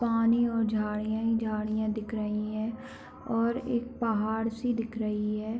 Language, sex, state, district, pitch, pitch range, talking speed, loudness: Hindi, female, Bihar, Supaul, 225 Hz, 215-235 Hz, 160 wpm, -30 LUFS